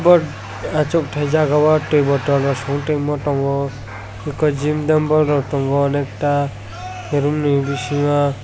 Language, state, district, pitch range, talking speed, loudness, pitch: Kokborok, Tripura, West Tripura, 140-150 Hz, 130 wpm, -18 LUFS, 145 Hz